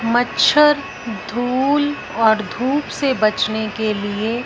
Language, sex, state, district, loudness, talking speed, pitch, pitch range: Hindi, female, Punjab, Fazilka, -18 LUFS, 110 wpm, 235 Hz, 220-275 Hz